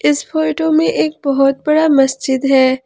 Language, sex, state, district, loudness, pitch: Hindi, male, Jharkhand, Ranchi, -14 LUFS, 265 Hz